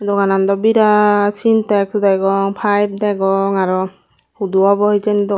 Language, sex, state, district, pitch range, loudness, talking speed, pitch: Chakma, female, Tripura, Dhalai, 195-210 Hz, -15 LUFS, 120 wpm, 200 Hz